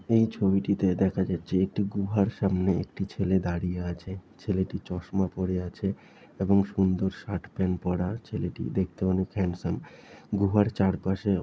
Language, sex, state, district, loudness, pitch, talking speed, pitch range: Bengali, male, West Bengal, Dakshin Dinajpur, -28 LUFS, 95 Hz, 140 wpm, 95-100 Hz